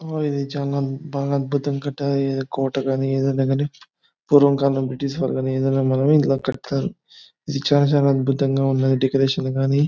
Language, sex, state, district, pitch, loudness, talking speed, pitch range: Telugu, male, Andhra Pradesh, Anantapur, 135 Hz, -21 LUFS, 170 wpm, 135-140 Hz